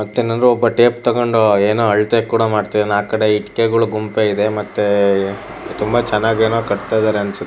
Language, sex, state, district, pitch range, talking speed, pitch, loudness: Kannada, male, Karnataka, Shimoga, 105-115 Hz, 155 wpm, 110 Hz, -16 LUFS